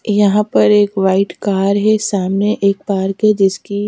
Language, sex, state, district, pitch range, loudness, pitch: Hindi, female, Chhattisgarh, Raipur, 195-210 Hz, -14 LUFS, 200 Hz